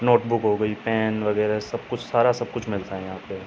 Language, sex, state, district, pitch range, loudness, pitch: Hindi, male, Uttar Pradesh, Hamirpur, 105-120 Hz, -24 LUFS, 110 Hz